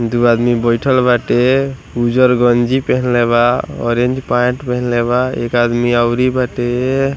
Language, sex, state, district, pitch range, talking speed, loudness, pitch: Bhojpuri, male, Bihar, East Champaran, 120-125 Hz, 135 wpm, -14 LUFS, 120 Hz